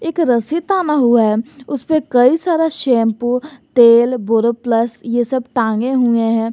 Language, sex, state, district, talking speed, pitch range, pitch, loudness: Hindi, male, Jharkhand, Garhwa, 155 wpm, 230-285 Hz, 245 Hz, -15 LUFS